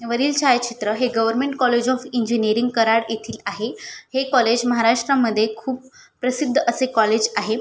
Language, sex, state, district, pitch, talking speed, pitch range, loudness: Marathi, female, Maharashtra, Aurangabad, 235 Hz, 140 wpm, 225-255 Hz, -20 LUFS